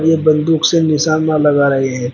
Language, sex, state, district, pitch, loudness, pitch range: Hindi, male, Uttar Pradesh, Shamli, 155 Hz, -13 LUFS, 140-160 Hz